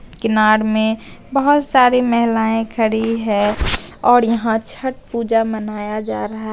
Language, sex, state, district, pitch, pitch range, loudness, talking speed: Hindi, female, Bihar, Katihar, 225 Hz, 215-235 Hz, -17 LUFS, 130 wpm